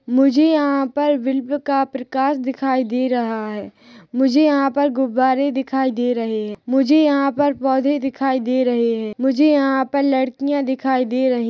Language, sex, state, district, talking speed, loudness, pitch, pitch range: Hindi, female, Chhattisgarh, Rajnandgaon, 170 wpm, -18 LUFS, 265 Hz, 255-280 Hz